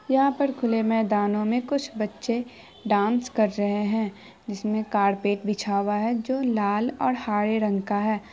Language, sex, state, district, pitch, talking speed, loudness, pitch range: Hindi, female, Bihar, Araria, 215 Hz, 150 wpm, -25 LUFS, 205-235 Hz